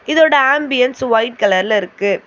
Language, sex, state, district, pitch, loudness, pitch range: Tamil, female, Tamil Nadu, Chennai, 250 Hz, -14 LUFS, 210-280 Hz